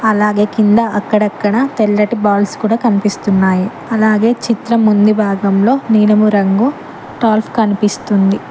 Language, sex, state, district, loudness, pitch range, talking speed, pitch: Telugu, female, Telangana, Mahabubabad, -13 LUFS, 205-225 Hz, 105 wpm, 210 Hz